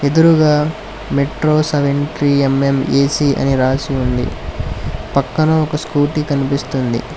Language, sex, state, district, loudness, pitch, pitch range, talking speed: Telugu, male, Telangana, Hyderabad, -16 LUFS, 140 Hz, 135-150 Hz, 100 wpm